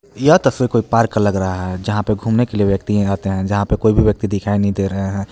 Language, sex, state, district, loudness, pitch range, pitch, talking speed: Hindi, male, Jharkhand, Palamu, -17 LUFS, 100-110 Hz, 105 Hz, 295 wpm